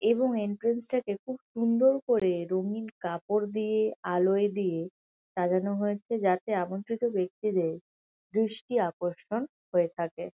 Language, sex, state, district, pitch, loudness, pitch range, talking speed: Bengali, female, West Bengal, Kolkata, 205 Hz, -29 LUFS, 180-230 Hz, 115 wpm